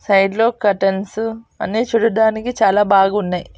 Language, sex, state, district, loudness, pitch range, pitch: Telugu, female, Andhra Pradesh, Annamaya, -16 LUFS, 195-225 Hz, 210 Hz